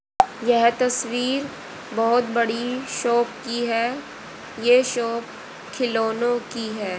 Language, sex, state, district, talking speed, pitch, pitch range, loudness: Hindi, female, Haryana, Rohtak, 105 wpm, 240 Hz, 230-250 Hz, -22 LUFS